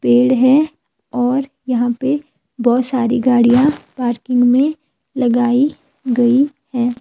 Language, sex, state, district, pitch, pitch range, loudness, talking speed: Hindi, female, Himachal Pradesh, Shimla, 250 Hz, 240-275 Hz, -15 LUFS, 110 wpm